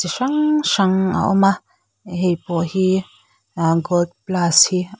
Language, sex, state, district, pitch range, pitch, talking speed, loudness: Mizo, female, Mizoram, Aizawl, 175-195 Hz, 185 Hz, 130 wpm, -18 LUFS